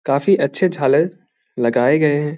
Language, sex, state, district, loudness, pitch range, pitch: Hindi, male, Bihar, Bhagalpur, -17 LUFS, 135-175 Hz, 150 Hz